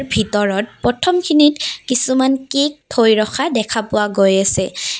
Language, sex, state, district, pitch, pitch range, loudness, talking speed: Assamese, female, Assam, Kamrup Metropolitan, 250 Hz, 215-285 Hz, -16 LUFS, 120 wpm